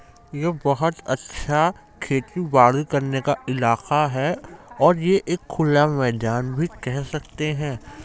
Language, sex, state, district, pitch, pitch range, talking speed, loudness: Hindi, male, Uttar Pradesh, Jyotiba Phule Nagar, 145 Hz, 130-160 Hz, 125 wpm, -22 LUFS